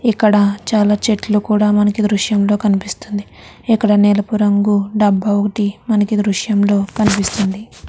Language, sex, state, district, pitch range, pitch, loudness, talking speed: Telugu, female, Andhra Pradesh, Krishna, 205-210 Hz, 205 Hz, -15 LUFS, 115 wpm